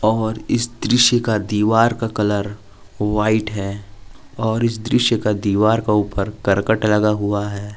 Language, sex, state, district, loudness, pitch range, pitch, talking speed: Hindi, male, Jharkhand, Palamu, -18 LUFS, 100-110 Hz, 105 Hz, 155 wpm